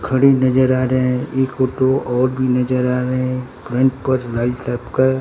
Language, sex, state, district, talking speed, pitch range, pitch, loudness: Hindi, male, Bihar, Katihar, 220 wpm, 125-130 Hz, 130 Hz, -17 LUFS